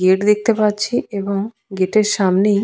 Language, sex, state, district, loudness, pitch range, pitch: Bengali, female, West Bengal, Purulia, -17 LUFS, 195-215 Hz, 205 Hz